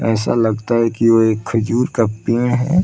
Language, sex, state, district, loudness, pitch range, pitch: Hindi, male, Bihar, Saran, -16 LUFS, 110-120 Hz, 115 Hz